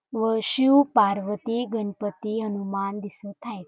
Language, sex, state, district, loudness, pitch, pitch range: Marathi, female, Maharashtra, Dhule, -24 LUFS, 210 Hz, 200-230 Hz